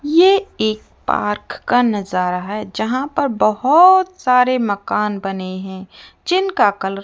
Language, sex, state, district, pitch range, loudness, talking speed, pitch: Hindi, female, Rajasthan, Jaipur, 195-290 Hz, -17 LUFS, 135 wpm, 220 Hz